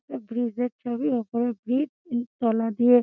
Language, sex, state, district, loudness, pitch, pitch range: Bengali, female, West Bengal, Dakshin Dinajpur, -26 LUFS, 240 Hz, 235-250 Hz